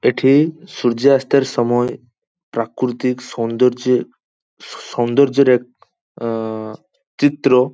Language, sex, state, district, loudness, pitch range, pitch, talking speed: Bengali, male, West Bengal, Paschim Medinipur, -17 LUFS, 120-135 Hz, 125 Hz, 70 wpm